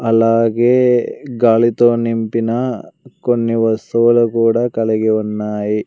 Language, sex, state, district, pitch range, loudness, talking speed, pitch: Telugu, male, Andhra Pradesh, Sri Satya Sai, 110-120 Hz, -15 LUFS, 80 wpm, 115 Hz